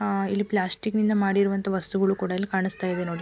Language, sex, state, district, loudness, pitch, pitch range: Kannada, female, Karnataka, Mysore, -25 LUFS, 195 Hz, 185-200 Hz